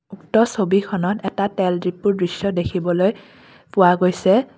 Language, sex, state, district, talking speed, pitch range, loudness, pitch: Assamese, female, Assam, Kamrup Metropolitan, 120 wpm, 180-200 Hz, -19 LUFS, 190 Hz